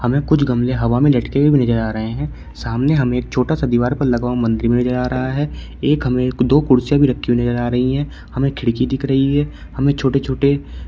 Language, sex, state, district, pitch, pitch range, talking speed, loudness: Hindi, male, Uttar Pradesh, Shamli, 130 Hz, 120-140 Hz, 255 wpm, -17 LUFS